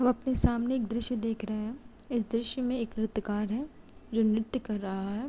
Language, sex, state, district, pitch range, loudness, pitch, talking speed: Hindi, female, Uttar Pradesh, Jalaun, 215-250 Hz, -31 LUFS, 230 Hz, 215 wpm